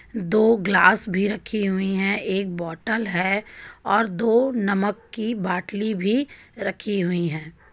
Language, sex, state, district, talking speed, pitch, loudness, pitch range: Hindi, female, Jharkhand, Ranchi, 140 wpm, 200 Hz, -22 LUFS, 190-220 Hz